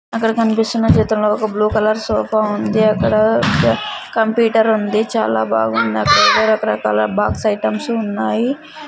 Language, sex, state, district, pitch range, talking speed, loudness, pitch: Telugu, female, Andhra Pradesh, Sri Satya Sai, 210-225 Hz, 135 wpm, -16 LUFS, 215 Hz